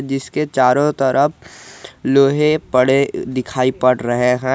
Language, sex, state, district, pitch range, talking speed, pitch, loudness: Hindi, male, Jharkhand, Garhwa, 125-140 Hz, 120 wpm, 130 Hz, -16 LUFS